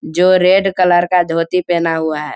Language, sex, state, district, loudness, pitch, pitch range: Hindi, male, Bihar, Sitamarhi, -13 LUFS, 175 Hz, 165-180 Hz